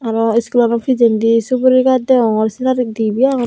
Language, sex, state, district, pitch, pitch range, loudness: Chakma, female, Tripura, Unakoti, 240 Hz, 225-255 Hz, -14 LUFS